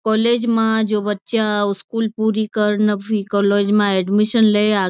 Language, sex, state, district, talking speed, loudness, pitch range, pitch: Marwari, female, Rajasthan, Churu, 170 wpm, -17 LUFS, 205-220 Hz, 210 Hz